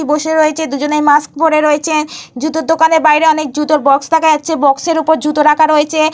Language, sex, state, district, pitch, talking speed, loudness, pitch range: Bengali, female, Jharkhand, Jamtara, 310 Hz, 195 wpm, -12 LUFS, 300-315 Hz